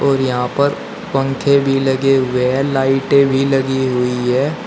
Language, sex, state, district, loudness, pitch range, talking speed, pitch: Hindi, male, Uttar Pradesh, Shamli, -15 LUFS, 130-140 Hz, 165 wpm, 135 Hz